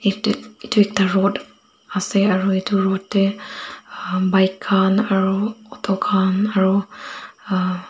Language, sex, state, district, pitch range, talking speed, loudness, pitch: Nagamese, female, Nagaland, Dimapur, 190-205 Hz, 115 wpm, -19 LUFS, 195 Hz